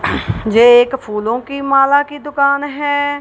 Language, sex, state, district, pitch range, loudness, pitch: Hindi, female, Punjab, Kapurthala, 240-285 Hz, -14 LUFS, 280 Hz